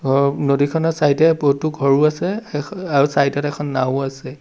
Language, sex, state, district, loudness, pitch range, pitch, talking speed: Assamese, male, Assam, Sonitpur, -18 LUFS, 140-155 Hz, 145 Hz, 190 wpm